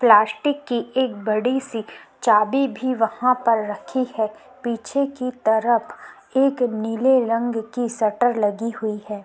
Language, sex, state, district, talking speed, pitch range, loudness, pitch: Hindi, female, Uttarakhand, Tehri Garhwal, 145 wpm, 220-255 Hz, -21 LUFS, 235 Hz